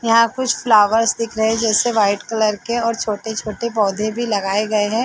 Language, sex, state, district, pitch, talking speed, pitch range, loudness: Hindi, female, Chhattisgarh, Bilaspur, 220 Hz, 215 wpm, 210-230 Hz, -18 LUFS